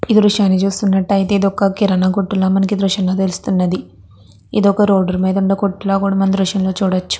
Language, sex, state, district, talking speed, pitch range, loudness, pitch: Telugu, female, Andhra Pradesh, Krishna, 140 wpm, 190-200 Hz, -15 LUFS, 195 Hz